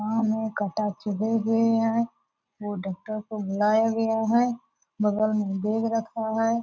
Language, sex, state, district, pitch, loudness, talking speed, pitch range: Hindi, female, Bihar, Purnia, 220 Hz, -26 LUFS, 155 wpm, 210-225 Hz